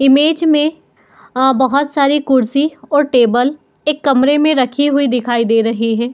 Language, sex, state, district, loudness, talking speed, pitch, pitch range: Hindi, female, Uttar Pradesh, Muzaffarnagar, -14 LUFS, 155 wpm, 275 Hz, 250-295 Hz